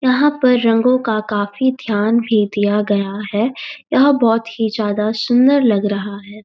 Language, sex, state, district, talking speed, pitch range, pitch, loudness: Hindi, female, Uttarakhand, Uttarkashi, 165 wpm, 205-250 Hz, 225 Hz, -16 LUFS